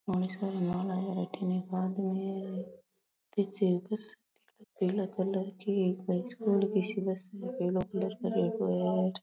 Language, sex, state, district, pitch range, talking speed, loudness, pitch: Rajasthani, female, Rajasthan, Nagaur, 185-200 Hz, 85 wpm, -32 LUFS, 190 Hz